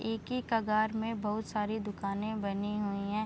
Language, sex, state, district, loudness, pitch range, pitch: Hindi, female, Uttar Pradesh, Deoria, -34 LUFS, 205-220 Hz, 215 Hz